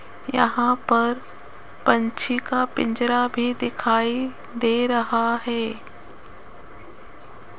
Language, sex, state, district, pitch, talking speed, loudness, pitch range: Hindi, female, Rajasthan, Jaipur, 240 Hz, 80 wpm, -22 LUFS, 230-245 Hz